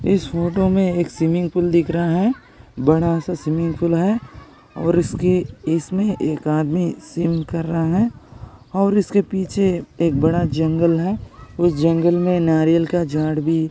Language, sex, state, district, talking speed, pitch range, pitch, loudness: Hindi, male, Maharashtra, Sindhudurg, 155 wpm, 160-180 Hz, 170 Hz, -19 LUFS